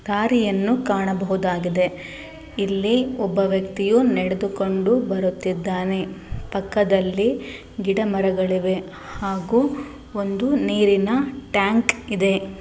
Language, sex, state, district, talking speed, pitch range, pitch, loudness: Kannada, female, Karnataka, Bellary, 100 wpm, 190-225 Hz, 195 Hz, -21 LUFS